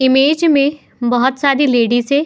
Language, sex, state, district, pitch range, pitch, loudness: Hindi, female, Uttar Pradesh, Muzaffarnagar, 245-285 Hz, 275 Hz, -14 LUFS